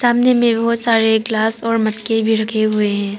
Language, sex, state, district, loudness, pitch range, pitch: Hindi, female, Arunachal Pradesh, Papum Pare, -16 LUFS, 215-230 Hz, 225 Hz